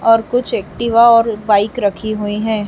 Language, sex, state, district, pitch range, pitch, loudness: Hindi, female, Chhattisgarh, Raipur, 210-230 Hz, 220 Hz, -14 LUFS